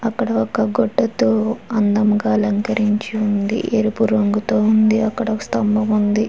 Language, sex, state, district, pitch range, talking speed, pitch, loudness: Telugu, female, Andhra Pradesh, Chittoor, 205-220 Hz, 125 wpm, 215 Hz, -18 LUFS